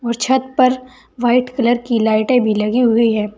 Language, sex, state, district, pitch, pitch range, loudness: Hindi, female, Uttar Pradesh, Saharanpur, 240 Hz, 225-255 Hz, -15 LUFS